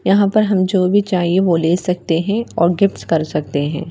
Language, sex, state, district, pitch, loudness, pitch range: Hindi, female, Bihar, Patna, 180 Hz, -16 LUFS, 165-200 Hz